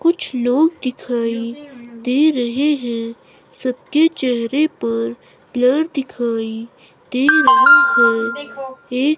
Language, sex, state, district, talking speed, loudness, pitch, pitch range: Hindi, female, Himachal Pradesh, Shimla, 100 wpm, -17 LUFS, 255 Hz, 235-295 Hz